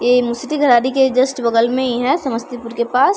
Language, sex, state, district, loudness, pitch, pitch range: Maithili, female, Bihar, Samastipur, -16 LUFS, 250 Hz, 235-265 Hz